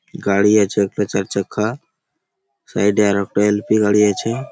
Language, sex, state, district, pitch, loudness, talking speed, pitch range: Bengali, male, West Bengal, Malda, 105 Hz, -17 LUFS, 200 wpm, 100-115 Hz